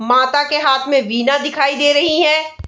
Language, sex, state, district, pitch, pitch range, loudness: Hindi, female, Bihar, Darbhanga, 285 Hz, 265-295 Hz, -14 LUFS